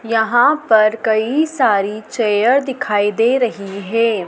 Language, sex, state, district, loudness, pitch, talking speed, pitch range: Hindi, female, Madhya Pradesh, Dhar, -16 LUFS, 225 Hz, 125 wpm, 210-250 Hz